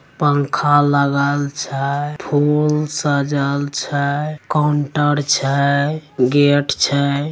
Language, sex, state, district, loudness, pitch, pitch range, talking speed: Angika, male, Bihar, Begusarai, -17 LUFS, 145 Hz, 140-150 Hz, 80 wpm